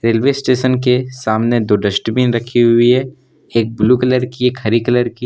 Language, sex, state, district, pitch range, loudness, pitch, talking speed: Hindi, male, Jharkhand, Deoghar, 115-125 Hz, -14 LUFS, 120 Hz, 195 wpm